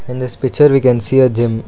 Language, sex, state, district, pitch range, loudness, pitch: English, male, Karnataka, Bangalore, 120-135 Hz, -12 LUFS, 125 Hz